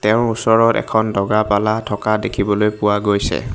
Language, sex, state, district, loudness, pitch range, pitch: Assamese, male, Assam, Hailakandi, -17 LUFS, 105-110 Hz, 105 Hz